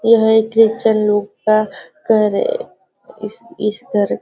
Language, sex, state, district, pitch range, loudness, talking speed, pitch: Hindi, female, Maharashtra, Nagpur, 210-225 Hz, -16 LUFS, 155 wpm, 220 Hz